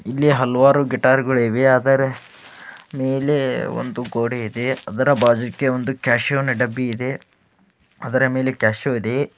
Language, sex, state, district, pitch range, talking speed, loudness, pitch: Kannada, male, Karnataka, Dharwad, 120-135 Hz, 115 wpm, -19 LUFS, 130 Hz